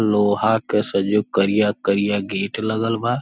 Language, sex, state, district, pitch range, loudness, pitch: Bhojpuri, male, Uttar Pradesh, Gorakhpur, 100-110 Hz, -20 LUFS, 105 Hz